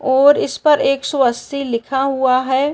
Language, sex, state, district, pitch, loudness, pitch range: Hindi, female, Uttar Pradesh, Gorakhpur, 270 Hz, -16 LUFS, 260-280 Hz